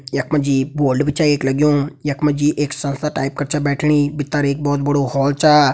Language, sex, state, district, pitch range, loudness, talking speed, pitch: Garhwali, male, Uttarakhand, Tehri Garhwal, 140-150 Hz, -17 LUFS, 220 wpm, 145 Hz